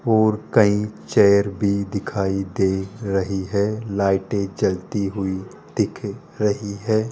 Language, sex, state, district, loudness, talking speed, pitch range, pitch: Hindi, male, Rajasthan, Jaipur, -21 LUFS, 120 wpm, 95-105 Hz, 100 Hz